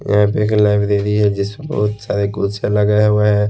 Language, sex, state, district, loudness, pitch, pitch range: Hindi, male, Haryana, Rohtak, -16 LUFS, 105 Hz, 100-105 Hz